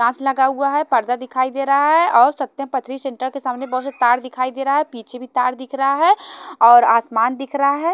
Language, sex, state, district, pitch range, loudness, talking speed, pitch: Hindi, female, Haryana, Jhajjar, 250-280 Hz, -17 LUFS, 250 wpm, 265 Hz